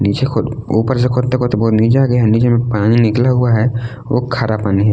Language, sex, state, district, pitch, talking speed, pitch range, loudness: Hindi, male, Jharkhand, Palamu, 120 Hz, 245 wpm, 110-125 Hz, -14 LUFS